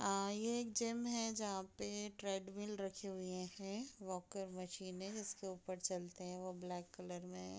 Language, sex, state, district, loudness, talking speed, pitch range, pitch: Hindi, female, Bihar, East Champaran, -45 LUFS, 165 wpm, 185-205 Hz, 195 Hz